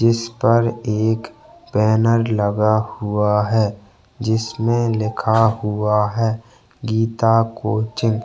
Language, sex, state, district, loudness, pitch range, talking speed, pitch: Hindi, male, Chhattisgarh, Bastar, -19 LUFS, 105-115 Hz, 95 wpm, 110 Hz